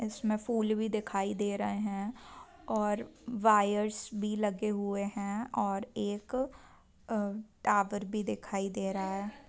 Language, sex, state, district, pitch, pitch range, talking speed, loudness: Hindi, female, Bihar, Sitamarhi, 210 Hz, 200-215 Hz, 140 wpm, -33 LUFS